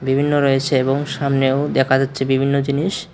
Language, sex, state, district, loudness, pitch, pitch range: Bengali, male, Tripura, West Tripura, -18 LUFS, 135 Hz, 135-140 Hz